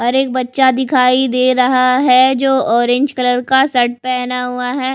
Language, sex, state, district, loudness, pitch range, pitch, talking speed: Hindi, female, Odisha, Khordha, -13 LUFS, 250-260 Hz, 255 Hz, 180 wpm